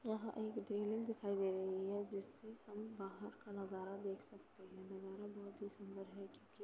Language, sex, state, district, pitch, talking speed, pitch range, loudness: Hindi, female, Uttar Pradesh, Jalaun, 200 Hz, 190 wpm, 195-215 Hz, -47 LUFS